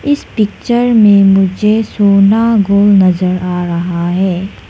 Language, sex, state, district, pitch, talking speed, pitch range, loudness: Hindi, female, Arunachal Pradesh, Lower Dibang Valley, 200 Hz, 115 wpm, 185-215 Hz, -11 LUFS